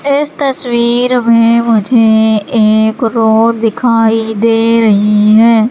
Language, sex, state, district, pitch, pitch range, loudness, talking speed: Hindi, female, Madhya Pradesh, Katni, 230 Hz, 220-235 Hz, -9 LUFS, 105 wpm